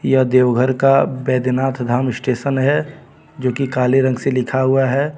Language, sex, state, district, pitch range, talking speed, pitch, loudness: Hindi, male, Jharkhand, Deoghar, 125-135 Hz, 175 wpm, 130 Hz, -17 LUFS